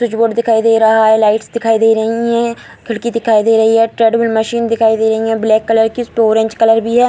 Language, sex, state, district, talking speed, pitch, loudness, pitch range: Hindi, female, Bihar, Muzaffarpur, 270 wpm, 225 Hz, -12 LUFS, 220-230 Hz